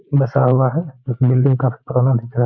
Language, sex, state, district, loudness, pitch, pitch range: Hindi, male, Bihar, Gaya, -17 LUFS, 130 Hz, 125-135 Hz